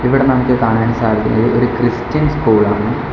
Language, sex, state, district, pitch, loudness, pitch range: Malayalam, male, Kerala, Kollam, 120 Hz, -14 LUFS, 110-130 Hz